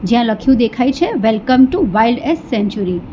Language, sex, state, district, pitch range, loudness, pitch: Gujarati, female, Gujarat, Valsad, 220-265 Hz, -14 LUFS, 240 Hz